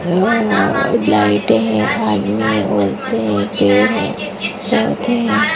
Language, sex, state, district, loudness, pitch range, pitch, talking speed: Hindi, female, Uttarakhand, Tehri Garhwal, -15 LUFS, 105-110 Hz, 105 Hz, 120 wpm